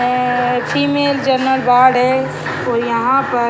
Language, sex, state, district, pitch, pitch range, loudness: Hindi, male, Bihar, Purnia, 250 Hz, 245-265 Hz, -15 LUFS